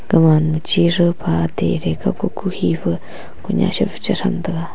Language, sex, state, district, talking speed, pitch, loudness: Wancho, female, Arunachal Pradesh, Longding, 150 wpm, 160 Hz, -18 LUFS